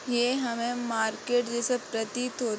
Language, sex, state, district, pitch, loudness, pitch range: Hindi, female, Uttar Pradesh, Hamirpur, 240 Hz, -29 LUFS, 230-245 Hz